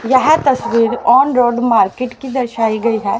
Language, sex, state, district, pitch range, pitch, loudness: Hindi, female, Haryana, Rohtak, 230-260 Hz, 245 Hz, -14 LUFS